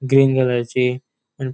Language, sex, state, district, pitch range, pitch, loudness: Konkani, male, Goa, North and South Goa, 125-135 Hz, 130 Hz, -18 LUFS